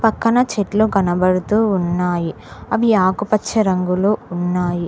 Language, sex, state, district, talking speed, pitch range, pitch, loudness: Telugu, female, Telangana, Mahabubabad, 100 wpm, 175-215 Hz, 190 Hz, -17 LUFS